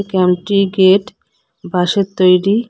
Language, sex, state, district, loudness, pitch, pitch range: Bengali, female, West Bengal, Cooch Behar, -14 LUFS, 195 Hz, 185-200 Hz